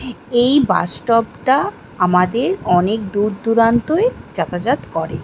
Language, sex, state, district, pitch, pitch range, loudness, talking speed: Bengali, female, West Bengal, Malda, 230 Hz, 180-255 Hz, -17 LUFS, 125 wpm